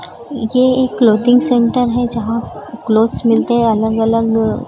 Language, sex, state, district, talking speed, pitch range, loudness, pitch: Hindi, female, Maharashtra, Gondia, 140 wpm, 225-245 Hz, -14 LUFS, 235 Hz